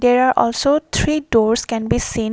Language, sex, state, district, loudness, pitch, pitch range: English, female, Assam, Kamrup Metropolitan, -17 LUFS, 245 Hz, 230-280 Hz